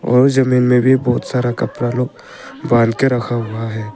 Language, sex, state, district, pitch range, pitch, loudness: Hindi, male, Arunachal Pradesh, Papum Pare, 115-125 Hz, 125 Hz, -16 LUFS